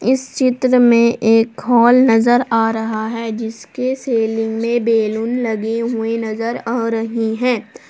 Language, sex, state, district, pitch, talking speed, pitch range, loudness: Hindi, female, Jharkhand, Palamu, 230 Hz, 145 wpm, 225-240 Hz, -16 LUFS